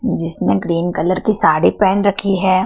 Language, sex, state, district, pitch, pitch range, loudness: Hindi, female, Madhya Pradesh, Dhar, 190 Hz, 175-200 Hz, -16 LUFS